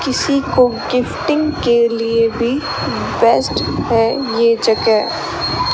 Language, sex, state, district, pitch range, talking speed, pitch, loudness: Hindi, female, Rajasthan, Bikaner, 230-275 Hz, 105 wpm, 235 Hz, -15 LUFS